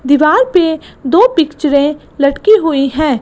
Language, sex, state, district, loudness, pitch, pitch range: Hindi, female, Gujarat, Gandhinagar, -12 LUFS, 305 Hz, 280-335 Hz